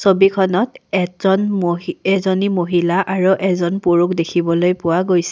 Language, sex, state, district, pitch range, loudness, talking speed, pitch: Assamese, female, Assam, Kamrup Metropolitan, 175-195 Hz, -17 LUFS, 125 wpm, 185 Hz